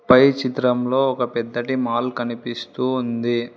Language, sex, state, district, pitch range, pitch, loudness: Telugu, female, Telangana, Hyderabad, 120-130 Hz, 125 Hz, -21 LUFS